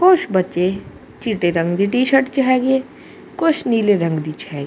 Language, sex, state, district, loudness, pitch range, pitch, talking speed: Punjabi, male, Punjab, Kapurthala, -18 LUFS, 175-270 Hz, 225 Hz, 205 wpm